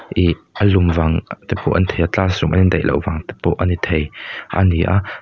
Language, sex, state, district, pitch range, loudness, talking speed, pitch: Mizo, male, Mizoram, Aizawl, 85-95 Hz, -17 LUFS, 240 wpm, 90 Hz